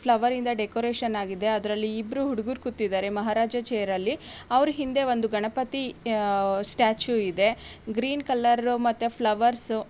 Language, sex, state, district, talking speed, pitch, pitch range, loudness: Kannada, female, Karnataka, Raichur, 125 wpm, 230 Hz, 215-245 Hz, -26 LUFS